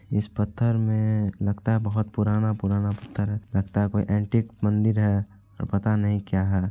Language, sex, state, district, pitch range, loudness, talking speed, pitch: Hindi, male, Bihar, Araria, 100-110 Hz, -25 LUFS, 190 wpm, 105 Hz